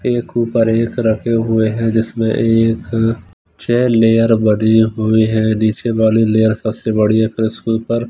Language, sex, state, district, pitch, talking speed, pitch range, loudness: Hindi, male, Punjab, Fazilka, 110 Hz, 170 wpm, 110-115 Hz, -15 LUFS